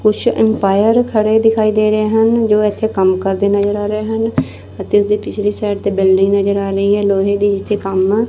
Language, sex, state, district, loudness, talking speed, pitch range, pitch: Punjabi, female, Punjab, Fazilka, -14 LUFS, 210 wpm, 200-215 Hz, 205 Hz